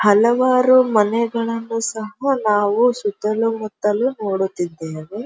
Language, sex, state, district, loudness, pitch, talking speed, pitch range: Kannada, female, Karnataka, Dharwad, -18 LUFS, 220 Hz, 80 wpm, 205-235 Hz